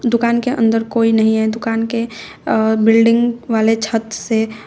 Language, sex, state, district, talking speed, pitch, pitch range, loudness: Hindi, female, Uttar Pradesh, Shamli, 165 wpm, 225 Hz, 220-235 Hz, -15 LUFS